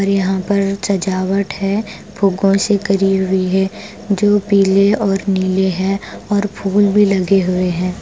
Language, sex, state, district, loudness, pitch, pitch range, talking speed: Hindi, female, Punjab, Pathankot, -16 LUFS, 195 Hz, 190-200 Hz, 165 wpm